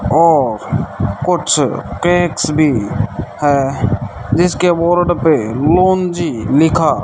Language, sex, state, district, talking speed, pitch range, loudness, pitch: Hindi, male, Rajasthan, Bikaner, 100 wpm, 120-175 Hz, -14 LUFS, 155 Hz